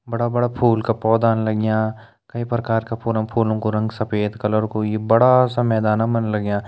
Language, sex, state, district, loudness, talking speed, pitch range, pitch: Garhwali, male, Uttarakhand, Uttarkashi, -19 LUFS, 190 wpm, 110-115 Hz, 110 Hz